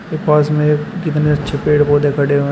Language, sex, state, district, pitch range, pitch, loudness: Hindi, male, Uttar Pradesh, Shamli, 145-150 Hz, 150 Hz, -15 LUFS